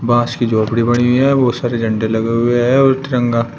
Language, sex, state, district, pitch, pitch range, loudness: Hindi, male, Uttar Pradesh, Shamli, 120 Hz, 115-125 Hz, -14 LUFS